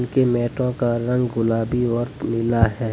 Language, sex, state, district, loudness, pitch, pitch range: Hindi, male, Jharkhand, Deoghar, -21 LUFS, 120 Hz, 115-125 Hz